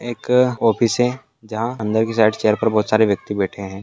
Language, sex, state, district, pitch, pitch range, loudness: Hindi, male, Chhattisgarh, Bastar, 110 Hz, 105-120 Hz, -18 LUFS